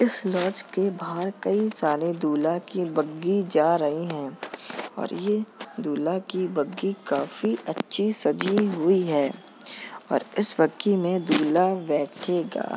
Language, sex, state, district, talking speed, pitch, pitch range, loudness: Hindi, male, Uttar Pradesh, Jalaun, 130 wpm, 180 Hz, 160-200 Hz, -25 LUFS